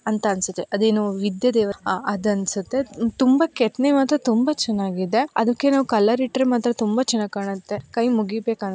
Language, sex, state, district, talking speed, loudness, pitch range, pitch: Kannada, female, Karnataka, Dharwad, 130 wpm, -21 LUFS, 205-255 Hz, 225 Hz